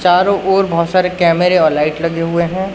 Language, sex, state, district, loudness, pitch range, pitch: Hindi, male, Madhya Pradesh, Umaria, -14 LUFS, 170-185 Hz, 180 Hz